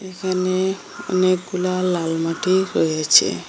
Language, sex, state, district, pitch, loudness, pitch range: Bengali, female, Assam, Hailakandi, 185 Hz, -20 LUFS, 170-185 Hz